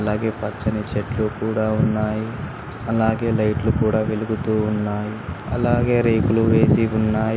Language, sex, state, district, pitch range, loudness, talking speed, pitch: Telugu, male, Telangana, Hyderabad, 105-110 Hz, -21 LUFS, 115 wpm, 110 Hz